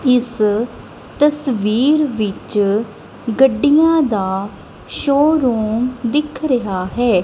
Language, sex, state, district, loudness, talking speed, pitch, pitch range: Punjabi, female, Punjab, Kapurthala, -16 LUFS, 75 wpm, 245 Hz, 210-285 Hz